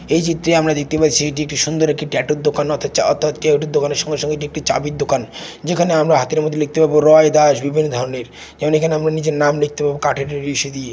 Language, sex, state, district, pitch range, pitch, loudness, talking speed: Bengali, male, West Bengal, Jalpaiguri, 145-155 Hz, 150 Hz, -16 LUFS, 235 wpm